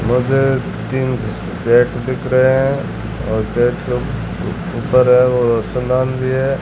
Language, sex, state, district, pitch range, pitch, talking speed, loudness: Hindi, male, Rajasthan, Bikaner, 120-130 Hz, 125 Hz, 125 wpm, -16 LUFS